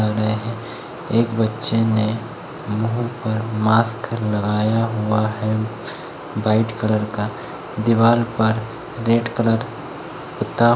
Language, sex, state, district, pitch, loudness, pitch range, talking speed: Hindi, male, Uttar Pradesh, Etah, 110 Hz, -21 LUFS, 110-115 Hz, 100 wpm